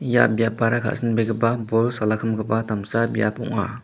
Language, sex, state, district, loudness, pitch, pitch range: Garo, male, Meghalaya, West Garo Hills, -22 LUFS, 115 Hz, 110-115 Hz